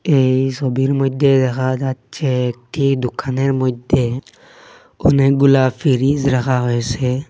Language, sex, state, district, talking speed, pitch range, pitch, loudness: Bengali, male, Assam, Hailakandi, 100 wpm, 130-140 Hz, 130 Hz, -17 LUFS